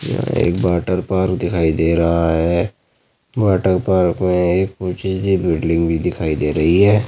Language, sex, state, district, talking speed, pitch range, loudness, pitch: Hindi, male, Uttar Pradesh, Jyotiba Phule Nagar, 160 wpm, 85-95 Hz, -17 LUFS, 90 Hz